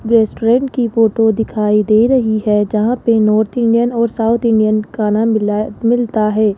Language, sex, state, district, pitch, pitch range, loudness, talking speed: Hindi, female, Rajasthan, Jaipur, 220 Hz, 215-235 Hz, -14 LUFS, 175 wpm